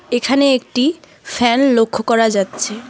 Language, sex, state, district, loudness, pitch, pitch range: Bengali, female, West Bengal, Alipurduar, -15 LUFS, 245 Hz, 230-270 Hz